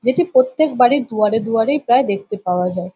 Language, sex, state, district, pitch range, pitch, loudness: Bengali, female, West Bengal, North 24 Parganas, 205-255 Hz, 225 Hz, -16 LUFS